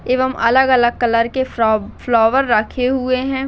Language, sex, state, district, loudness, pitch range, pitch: Hindi, female, Chhattisgarh, Bastar, -16 LUFS, 230-260 Hz, 250 Hz